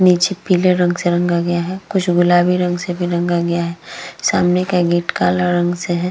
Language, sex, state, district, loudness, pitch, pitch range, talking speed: Hindi, female, Uttar Pradesh, Etah, -16 LUFS, 175 Hz, 175-180 Hz, 215 wpm